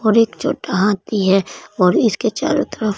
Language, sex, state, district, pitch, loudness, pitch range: Hindi, female, Punjab, Fazilka, 220 Hz, -17 LUFS, 195-255 Hz